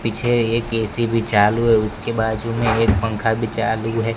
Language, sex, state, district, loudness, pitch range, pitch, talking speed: Hindi, male, Gujarat, Gandhinagar, -19 LUFS, 110-115 Hz, 115 Hz, 200 wpm